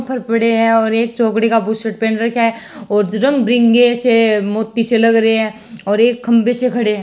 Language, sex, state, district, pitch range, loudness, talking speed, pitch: Hindi, female, Rajasthan, Churu, 220-235 Hz, -14 LUFS, 195 wpm, 230 Hz